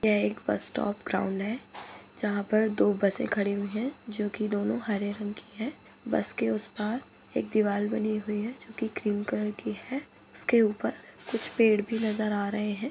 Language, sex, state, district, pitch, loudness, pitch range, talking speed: Hindi, female, Uttar Pradesh, Budaun, 210 Hz, -29 LUFS, 205-220 Hz, 205 wpm